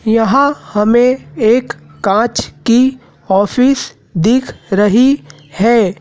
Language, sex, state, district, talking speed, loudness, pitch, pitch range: Hindi, male, Madhya Pradesh, Dhar, 90 wpm, -13 LUFS, 230 Hz, 205-255 Hz